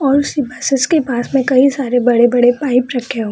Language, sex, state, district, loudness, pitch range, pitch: Hindi, female, Bihar, Samastipur, -14 LUFS, 245-275 Hz, 255 Hz